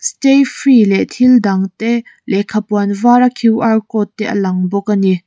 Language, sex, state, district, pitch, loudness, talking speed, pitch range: Mizo, female, Mizoram, Aizawl, 215 Hz, -13 LUFS, 180 wpm, 200-245 Hz